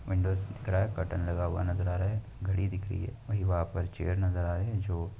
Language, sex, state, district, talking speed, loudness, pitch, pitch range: Hindi, male, Uttar Pradesh, Muzaffarnagar, 275 wpm, -32 LUFS, 95 Hz, 90-100 Hz